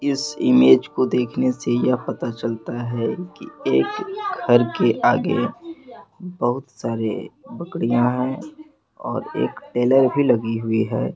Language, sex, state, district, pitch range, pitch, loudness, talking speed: Hindi, male, Bihar, Supaul, 115-180 Hz, 130 Hz, -21 LUFS, 135 wpm